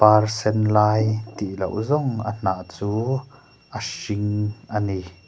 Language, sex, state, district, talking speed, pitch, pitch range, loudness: Mizo, male, Mizoram, Aizawl, 150 wpm, 105 Hz, 100-110 Hz, -23 LUFS